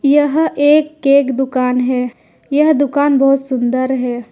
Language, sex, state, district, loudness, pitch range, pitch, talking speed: Hindi, female, Jharkhand, Ranchi, -14 LUFS, 255-290 Hz, 275 Hz, 140 wpm